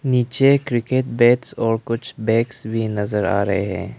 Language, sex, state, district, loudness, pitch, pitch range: Hindi, male, Arunachal Pradesh, Lower Dibang Valley, -19 LUFS, 115 Hz, 105-125 Hz